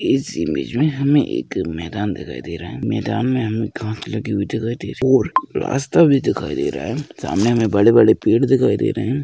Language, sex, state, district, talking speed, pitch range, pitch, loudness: Hindi, male, Bihar, Madhepura, 220 wpm, 105-135 Hz, 115 Hz, -19 LUFS